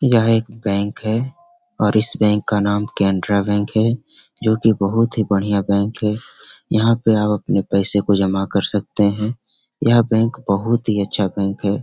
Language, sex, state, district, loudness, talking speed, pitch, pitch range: Hindi, male, Bihar, Jamui, -18 LUFS, 185 wpm, 105 Hz, 100-115 Hz